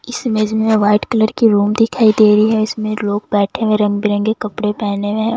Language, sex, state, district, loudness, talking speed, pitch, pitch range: Hindi, female, Bihar, Katihar, -15 LUFS, 235 wpm, 215 Hz, 210-220 Hz